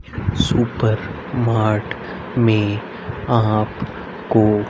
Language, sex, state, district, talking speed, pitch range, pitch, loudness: Hindi, male, Haryana, Rohtak, 50 wpm, 105-115 Hz, 110 Hz, -20 LUFS